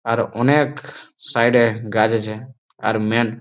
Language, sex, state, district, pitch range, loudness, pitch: Bengali, male, West Bengal, Malda, 110-125 Hz, -19 LUFS, 115 Hz